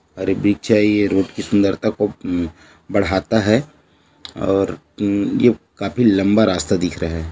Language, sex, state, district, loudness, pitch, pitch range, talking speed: Hindi, male, Chhattisgarh, Bilaspur, -18 LUFS, 100 Hz, 95-105 Hz, 150 wpm